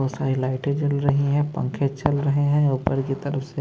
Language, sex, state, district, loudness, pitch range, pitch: Hindi, male, Maharashtra, Mumbai Suburban, -23 LUFS, 135-145 Hz, 140 Hz